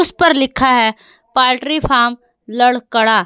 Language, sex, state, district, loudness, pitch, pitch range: Hindi, female, Jharkhand, Garhwa, -13 LUFS, 245 Hz, 230-265 Hz